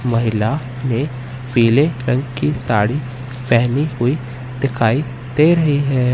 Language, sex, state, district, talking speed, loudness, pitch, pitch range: Hindi, male, Madhya Pradesh, Katni, 115 wpm, -17 LUFS, 125 Hz, 125-140 Hz